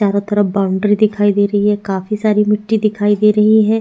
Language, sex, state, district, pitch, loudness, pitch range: Hindi, female, Chhattisgarh, Sukma, 210 Hz, -14 LUFS, 205-215 Hz